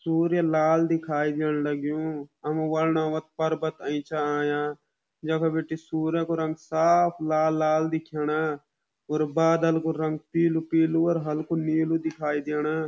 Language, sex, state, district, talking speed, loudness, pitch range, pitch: Garhwali, male, Uttarakhand, Uttarkashi, 135 wpm, -26 LUFS, 150-160 Hz, 160 Hz